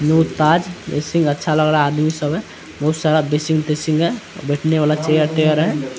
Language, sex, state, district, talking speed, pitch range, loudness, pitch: Hindi, male, Bihar, Araria, 210 wpm, 150-160 Hz, -17 LUFS, 155 Hz